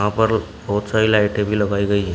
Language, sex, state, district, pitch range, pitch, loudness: Hindi, male, Uttar Pradesh, Shamli, 100-110 Hz, 105 Hz, -19 LUFS